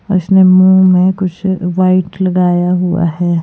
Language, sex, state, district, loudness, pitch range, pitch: Hindi, female, Himachal Pradesh, Shimla, -11 LUFS, 180-185 Hz, 185 Hz